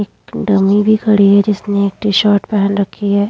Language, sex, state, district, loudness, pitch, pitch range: Hindi, female, Uttar Pradesh, Hamirpur, -13 LUFS, 200 Hz, 200-210 Hz